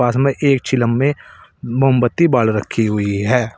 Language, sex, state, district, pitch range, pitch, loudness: Hindi, male, Uttar Pradesh, Saharanpur, 115-135 Hz, 125 Hz, -16 LUFS